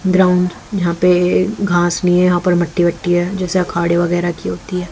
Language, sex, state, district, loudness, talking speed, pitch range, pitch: Hindi, female, Haryana, Jhajjar, -15 LUFS, 205 wpm, 175-185 Hz, 180 Hz